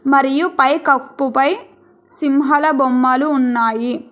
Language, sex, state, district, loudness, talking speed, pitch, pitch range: Telugu, female, Telangana, Hyderabad, -15 LUFS, 85 wpm, 275 Hz, 260-295 Hz